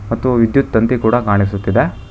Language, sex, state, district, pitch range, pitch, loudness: Kannada, male, Karnataka, Bangalore, 100-120 Hz, 115 Hz, -15 LUFS